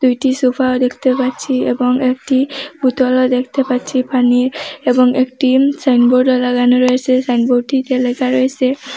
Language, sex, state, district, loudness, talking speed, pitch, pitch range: Bengali, female, Assam, Hailakandi, -14 LUFS, 125 wpm, 255 Hz, 250-265 Hz